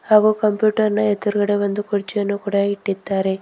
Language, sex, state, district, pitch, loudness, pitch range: Kannada, female, Karnataka, Bidar, 205 Hz, -19 LUFS, 200-210 Hz